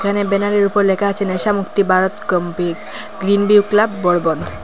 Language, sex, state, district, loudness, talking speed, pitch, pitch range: Bengali, female, Assam, Hailakandi, -16 LUFS, 180 wpm, 200 Hz, 180-205 Hz